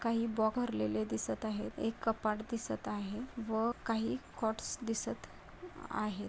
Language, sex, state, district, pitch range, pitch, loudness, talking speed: Marathi, female, Maharashtra, Nagpur, 205-230 Hz, 220 Hz, -37 LUFS, 125 wpm